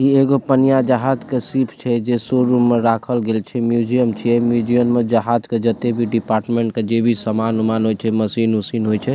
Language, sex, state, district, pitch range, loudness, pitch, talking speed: Maithili, male, Bihar, Supaul, 115-125 Hz, -17 LUFS, 120 Hz, 210 wpm